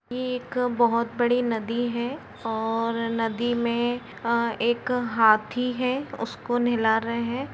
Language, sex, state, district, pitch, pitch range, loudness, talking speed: Hindi, female, Uttar Pradesh, Budaun, 235 Hz, 230-245 Hz, -25 LUFS, 125 wpm